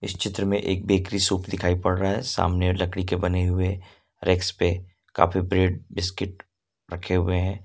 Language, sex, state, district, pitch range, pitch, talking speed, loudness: Hindi, male, Jharkhand, Ranchi, 90-95 Hz, 95 Hz, 175 wpm, -24 LUFS